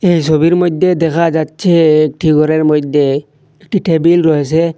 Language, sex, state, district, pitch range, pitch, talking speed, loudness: Bengali, male, Assam, Hailakandi, 150-170 Hz, 160 Hz, 140 wpm, -12 LUFS